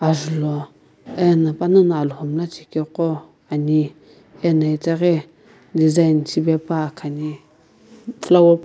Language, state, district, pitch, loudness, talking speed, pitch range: Sumi, Nagaland, Kohima, 160 Hz, -19 LUFS, 95 wpm, 155-170 Hz